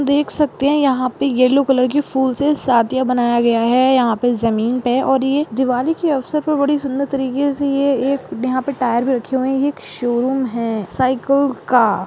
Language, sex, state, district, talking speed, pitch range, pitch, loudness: Hindi, female, Maharashtra, Dhule, 210 wpm, 250-280 Hz, 265 Hz, -17 LUFS